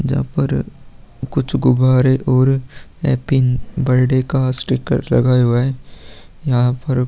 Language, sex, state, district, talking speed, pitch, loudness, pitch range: Hindi, male, Bihar, Vaishali, 125 wpm, 130 Hz, -16 LUFS, 125-130 Hz